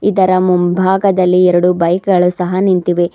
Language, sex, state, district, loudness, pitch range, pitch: Kannada, female, Karnataka, Bidar, -12 LUFS, 180-190 Hz, 180 Hz